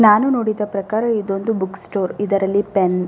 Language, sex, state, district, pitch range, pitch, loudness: Kannada, female, Karnataka, Raichur, 195-215 Hz, 205 Hz, -19 LUFS